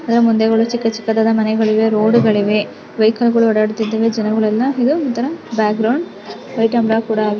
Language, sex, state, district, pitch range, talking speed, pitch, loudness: Kannada, female, Karnataka, Bellary, 220-235 Hz, 180 wpm, 225 Hz, -15 LUFS